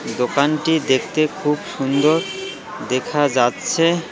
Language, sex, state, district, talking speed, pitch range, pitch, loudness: Bengali, male, West Bengal, Cooch Behar, 85 wpm, 130-160 Hz, 150 Hz, -19 LUFS